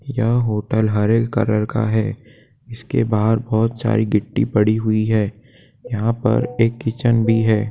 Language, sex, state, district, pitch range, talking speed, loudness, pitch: Hindi, male, Jharkhand, Jamtara, 110-115 Hz, 165 wpm, -19 LUFS, 115 Hz